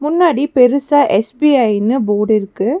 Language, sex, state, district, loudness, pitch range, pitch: Tamil, female, Tamil Nadu, Nilgiris, -13 LUFS, 210-290 Hz, 255 Hz